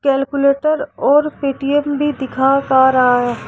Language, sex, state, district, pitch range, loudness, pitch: Hindi, male, Rajasthan, Jaipur, 265-290 Hz, -15 LUFS, 275 Hz